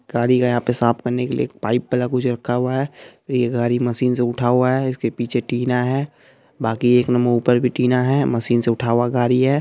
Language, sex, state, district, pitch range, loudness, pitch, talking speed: Hindi, male, Bihar, Araria, 120-125 Hz, -19 LUFS, 125 Hz, 230 wpm